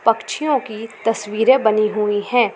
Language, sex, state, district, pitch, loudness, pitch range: Hindi, female, Chhattisgarh, Balrampur, 225 Hz, -18 LUFS, 215-240 Hz